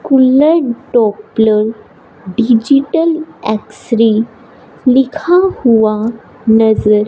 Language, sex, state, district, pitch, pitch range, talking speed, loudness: Hindi, female, Punjab, Fazilka, 235 Hz, 220-270 Hz, 60 wpm, -12 LUFS